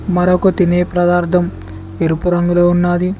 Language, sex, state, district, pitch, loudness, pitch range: Telugu, male, Telangana, Mahabubabad, 175 Hz, -14 LUFS, 175-180 Hz